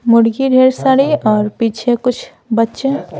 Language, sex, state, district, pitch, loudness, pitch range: Hindi, female, Bihar, Patna, 240 Hz, -14 LUFS, 230-265 Hz